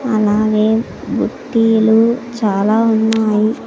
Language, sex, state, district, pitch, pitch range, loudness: Telugu, female, Andhra Pradesh, Sri Satya Sai, 220 Hz, 215-230 Hz, -14 LUFS